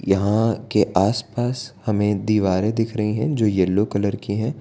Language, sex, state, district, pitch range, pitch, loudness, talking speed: Hindi, male, Gujarat, Valsad, 100-115 Hz, 105 Hz, -21 LUFS, 180 wpm